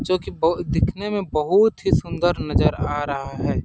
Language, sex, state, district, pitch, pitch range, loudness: Hindi, male, Chhattisgarh, Sarguja, 170 Hz, 140-190 Hz, -21 LUFS